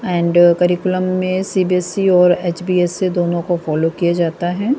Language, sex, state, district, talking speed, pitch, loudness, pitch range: Hindi, female, Haryana, Jhajjar, 150 wpm, 180 Hz, -16 LUFS, 175-185 Hz